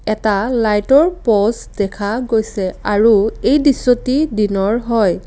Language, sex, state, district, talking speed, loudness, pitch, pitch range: Assamese, female, Assam, Kamrup Metropolitan, 115 wpm, -15 LUFS, 220 Hz, 205-250 Hz